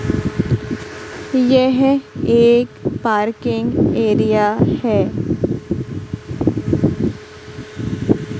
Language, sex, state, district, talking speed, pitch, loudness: Hindi, female, Madhya Pradesh, Katni, 35 wpm, 210 Hz, -17 LUFS